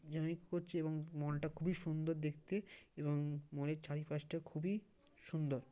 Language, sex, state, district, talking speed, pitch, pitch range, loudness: Bengali, male, West Bengal, Kolkata, 115 wpm, 155 Hz, 150-170 Hz, -43 LUFS